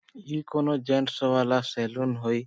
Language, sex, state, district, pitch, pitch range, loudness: Sadri, male, Chhattisgarh, Jashpur, 130 Hz, 125-150 Hz, -27 LUFS